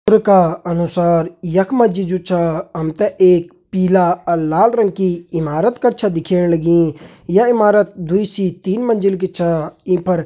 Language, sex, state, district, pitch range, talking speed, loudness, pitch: Hindi, male, Uttarakhand, Uttarkashi, 170-200 Hz, 185 wpm, -15 LUFS, 180 Hz